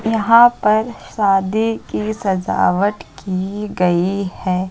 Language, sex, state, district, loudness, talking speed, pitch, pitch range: Hindi, female, Uttar Pradesh, Hamirpur, -17 LUFS, 100 wpm, 200 Hz, 185-220 Hz